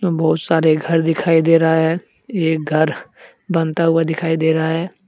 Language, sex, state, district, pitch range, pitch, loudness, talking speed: Hindi, male, Jharkhand, Deoghar, 160-165 Hz, 165 Hz, -17 LUFS, 175 wpm